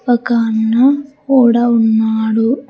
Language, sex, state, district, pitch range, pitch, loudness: Telugu, female, Andhra Pradesh, Sri Satya Sai, 225-260 Hz, 235 Hz, -13 LUFS